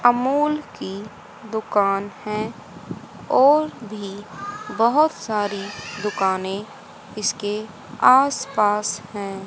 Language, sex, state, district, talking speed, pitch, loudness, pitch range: Hindi, female, Haryana, Rohtak, 75 wpm, 210 Hz, -22 LUFS, 205-255 Hz